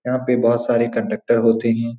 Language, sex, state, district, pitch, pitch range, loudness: Hindi, male, Bihar, Saran, 115 Hz, 115-120 Hz, -18 LUFS